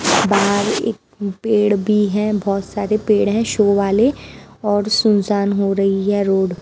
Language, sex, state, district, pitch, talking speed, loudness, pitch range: Hindi, female, Bihar, West Champaran, 205 Hz, 165 wpm, -17 LUFS, 200-210 Hz